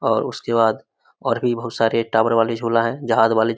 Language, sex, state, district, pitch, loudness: Hindi, male, Bihar, Samastipur, 115 Hz, -19 LUFS